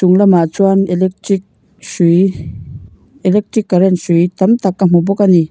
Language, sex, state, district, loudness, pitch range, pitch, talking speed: Mizo, female, Mizoram, Aizawl, -12 LUFS, 170-195 Hz, 185 Hz, 165 wpm